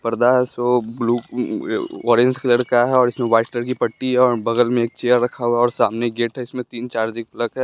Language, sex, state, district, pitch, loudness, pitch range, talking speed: Hindi, male, Bihar, West Champaran, 120 Hz, -19 LUFS, 120-125 Hz, 260 wpm